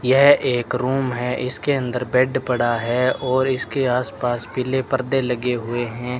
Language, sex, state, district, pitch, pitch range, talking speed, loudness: Hindi, male, Rajasthan, Bikaner, 125 Hz, 125-130 Hz, 165 wpm, -20 LUFS